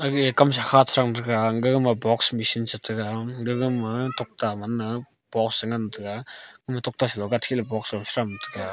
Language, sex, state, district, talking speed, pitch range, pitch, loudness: Wancho, male, Arunachal Pradesh, Longding, 75 wpm, 110-125 Hz, 115 Hz, -24 LUFS